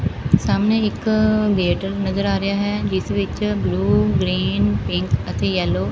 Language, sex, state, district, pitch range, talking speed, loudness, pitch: Punjabi, female, Punjab, Fazilka, 95-115 Hz, 150 wpm, -19 LUFS, 100 Hz